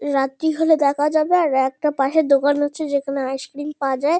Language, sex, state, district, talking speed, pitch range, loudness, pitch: Bengali, female, West Bengal, Kolkata, 200 wpm, 275-310 Hz, -19 LUFS, 290 Hz